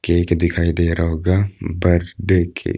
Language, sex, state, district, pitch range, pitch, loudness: Hindi, male, Uttar Pradesh, Budaun, 85-90 Hz, 85 Hz, -18 LUFS